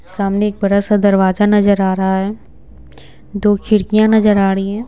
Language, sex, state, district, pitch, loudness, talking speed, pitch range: Hindi, female, Bihar, Patna, 200 Hz, -14 LUFS, 185 wpm, 195-210 Hz